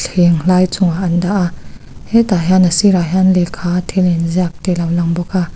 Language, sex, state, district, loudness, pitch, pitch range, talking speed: Mizo, female, Mizoram, Aizawl, -14 LUFS, 180 Hz, 170-185 Hz, 225 wpm